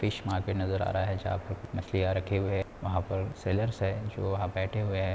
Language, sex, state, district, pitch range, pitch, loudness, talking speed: Hindi, male, Bihar, Madhepura, 95-105 Hz, 95 Hz, -32 LUFS, 255 wpm